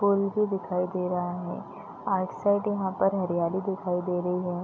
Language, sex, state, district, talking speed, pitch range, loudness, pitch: Hindi, female, Bihar, East Champaran, 195 wpm, 180-195 Hz, -28 LUFS, 185 Hz